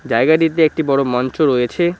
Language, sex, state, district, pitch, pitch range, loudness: Bengali, male, West Bengal, Cooch Behar, 155 Hz, 130-165 Hz, -15 LUFS